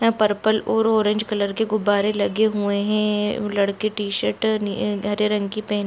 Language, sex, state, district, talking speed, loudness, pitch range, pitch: Hindi, female, Jharkhand, Jamtara, 185 wpm, -21 LUFS, 205-215 Hz, 210 Hz